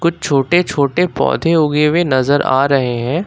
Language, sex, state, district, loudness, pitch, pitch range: Hindi, male, Uttar Pradesh, Lucknow, -14 LUFS, 150 Hz, 135-170 Hz